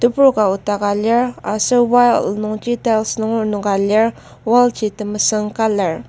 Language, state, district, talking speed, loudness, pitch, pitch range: Ao, Nagaland, Kohima, 145 wpm, -16 LUFS, 220 Hz, 210-240 Hz